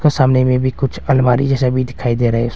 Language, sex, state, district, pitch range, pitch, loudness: Hindi, male, Arunachal Pradesh, Longding, 125-135 Hz, 130 Hz, -15 LUFS